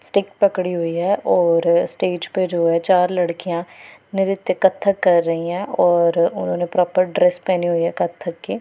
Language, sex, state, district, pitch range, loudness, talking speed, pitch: Hindi, female, Punjab, Pathankot, 170-185 Hz, -19 LUFS, 175 wpm, 180 Hz